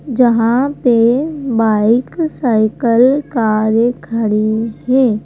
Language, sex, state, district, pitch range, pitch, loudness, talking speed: Hindi, female, Madhya Pradesh, Bhopal, 220-255 Hz, 235 Hz, -14 LUFS, 80 wpm